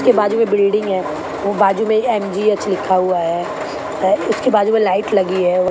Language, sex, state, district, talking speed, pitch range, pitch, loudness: Hindi, female, Maharashtra, Mumbai Suburban, 220 wpm, 185-210 Hz, 200 Hz, -16 LUFS